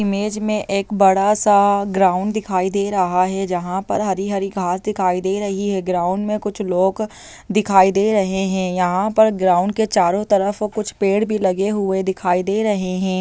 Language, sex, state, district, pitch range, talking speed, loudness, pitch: Hindi, female, Chhattisgarh, Bastar, 185-210 Hz, 185 wpm, -18 LUFS, 195 Hz